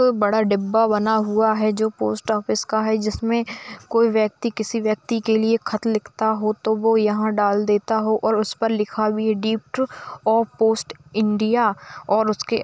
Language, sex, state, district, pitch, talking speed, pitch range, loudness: Hindi, female, Bihar, Kishanganj, 220 Hz, 180 wpm, 215-225 Hz, -21 LUFS